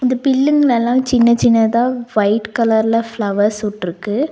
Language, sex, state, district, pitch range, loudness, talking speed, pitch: Tamil, female, Tamil Nadu, Nilgiris, 215-250 Hz, -15 LUFS, 110 wpm, 230 Hz